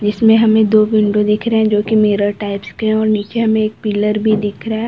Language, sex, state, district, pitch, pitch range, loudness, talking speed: Hindi, female, Uttar Pradesh, Varanasi, 215 Hz, 210-220 Hz, -14 LUFS, 270 wpm